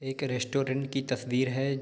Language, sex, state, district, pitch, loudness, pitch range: Hindi, male, Jharkhand, Sahebganj, 135 Hz, -30 LUFS, 130-135 Hz